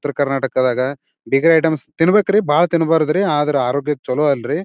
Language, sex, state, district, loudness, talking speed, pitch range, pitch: Kannada, male, Karnataka, Bijapur, -16 LUFS, 155 wpm, 135-165 Hz, 150 Hz